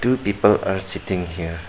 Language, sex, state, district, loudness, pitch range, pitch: English, male, Arunachal Pradesh, Papum Pare, -20 LUFS, 85-100 Hz, 95 Hz